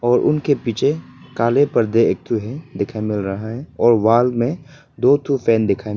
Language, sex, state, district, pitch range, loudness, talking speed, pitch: Hindi, male, Arunachal Pradesh, Papum Pare, 110-140 Hz, -18 LUFS, 200 wpm, 120 Hz